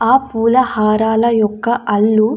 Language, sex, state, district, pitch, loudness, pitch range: Telugu, female, Andhra Pradesh, Anantapur, 225 Hz, -14 LUFS, 215-235 Hz